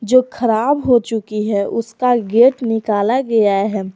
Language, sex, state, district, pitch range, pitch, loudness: Hindi, female, Jharkhand, Garhwa, 210-250 Hz, 225 Hz, -16 LUFS